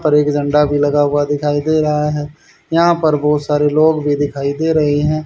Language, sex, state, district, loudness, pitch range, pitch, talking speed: Hindi, male, Haryana, Rohtak, -15 LUFS, 145-155 Hz, 150 Hz, 230 wpm